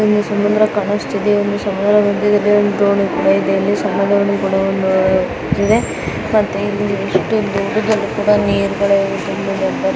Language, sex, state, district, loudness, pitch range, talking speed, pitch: Kannada, female, Karnataka, Dakshina Kannada, -15 LUFS, 195-210 Hz, 120 wpm, 205 Hz